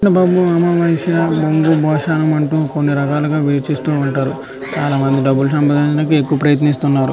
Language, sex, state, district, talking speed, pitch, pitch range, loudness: Telugu, male, Andhra Pradesh, Chittoor, 135 wpm, 150 Hz, 140-160 Hz, -15 LUFS